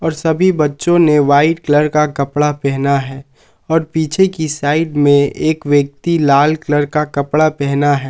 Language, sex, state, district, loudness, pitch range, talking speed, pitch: Hindi, male, Jharkhand, Palamu, -14 LUFS, 140-160 Hz, 165 wpm, 150 Hz